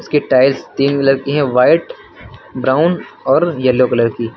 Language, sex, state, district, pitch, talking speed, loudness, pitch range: Hindi, male, Uttar Pradesh, Lucknow, 135 Hz, 165 wpm, -14 LUFS, 125-150 Hz